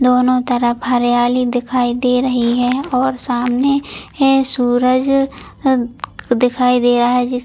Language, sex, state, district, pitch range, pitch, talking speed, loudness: Hindi, female, Chhattisgarh, Bilaspur, 245-255 Hz, 250 Hz, 135 wpm, -15 LUFS